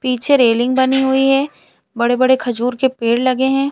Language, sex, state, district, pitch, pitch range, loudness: Hindi, female, Chhattisgarh, Balrampur, 255 Hz, 245-265 Hz, -15 LUFS